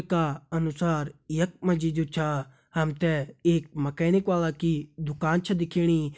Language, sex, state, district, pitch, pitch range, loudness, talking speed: Hindi, male, Uttarakhand, Uttarkashi, 165 Hz, 150-170 Hz, -27 LUFS, 135 wpm